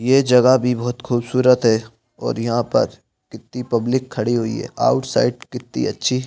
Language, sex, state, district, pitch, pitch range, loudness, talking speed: Hindi, male, Madhya Pradesh, Bhopal, 125 Hz, 115-125 Hz, -19 LUFS, 165 wpm